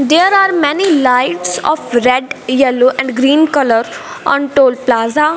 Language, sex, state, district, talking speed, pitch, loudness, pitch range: English, female, Punjab, Fazilka, 145 wpm, 265 Hz, -12 LUFS, 250-300 Hz